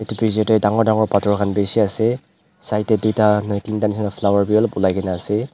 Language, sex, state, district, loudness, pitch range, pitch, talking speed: Nagamese, male, Nagaland, Dimapur, -18 LUFS, 100-110 Hz, 105 Hz, 230 wpm